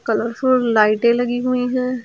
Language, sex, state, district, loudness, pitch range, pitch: Hindi, female, Uttar Pradesh, Lucknow, -17 LUFS, 230-255 Hz, 245 Hz